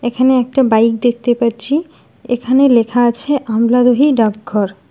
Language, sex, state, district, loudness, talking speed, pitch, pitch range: Bengali, female, West Bengal, Alipurduar, -14 LUFS, 135 wpm, 245 Hz, 230-260 Hz